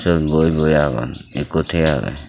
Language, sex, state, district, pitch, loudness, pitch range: Chakma, male, Tripura, Dhalai, 80 Hz, -18 LUFS, 75-80 Hz